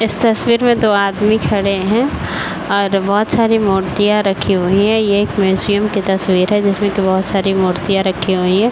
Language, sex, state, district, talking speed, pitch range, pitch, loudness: Hindi, female, Uttar Pradesh, Varanasi, 200 wpm, 195-210 Hz, 200 Hz, -14 LUFS